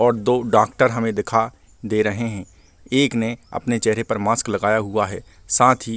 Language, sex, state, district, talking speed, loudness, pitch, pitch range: Hindi, male, Chhattisgarh, Bilaspur, 200 wpm, -20 LUFS, 115 Hz, 105-120 Hz